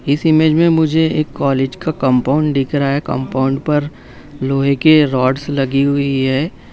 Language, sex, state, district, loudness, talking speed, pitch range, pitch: Hindi, male, Bihar, Saran, -15 LUFS, 170 wpm, 135-155 Hz, 140 Hz